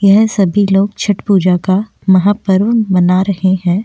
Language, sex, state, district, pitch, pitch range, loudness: Hindi, female, Goa, North and South Goa, 195 Hz, 185-205 Hz, -12 LUFS